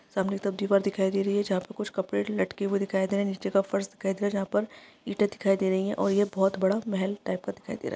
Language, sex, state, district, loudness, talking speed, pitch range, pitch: Hindi, female, Maharashtra, Sindhudurg, -28 LUFS, 300 wpm, 195-205 Hz, 195 Hz